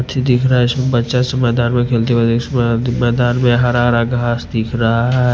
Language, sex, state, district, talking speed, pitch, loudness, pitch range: Hindi, male, Punjab, Fazilka, 190 wpm, 120 Hz, -15 LUFS, 120-125 Hz